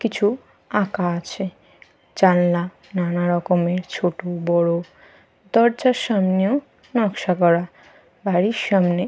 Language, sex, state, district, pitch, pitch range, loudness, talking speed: Bengali, female, Jharkhand, Jamtara, 180 Hz, 175-205 Hz, -21 LUFS, 100 wpm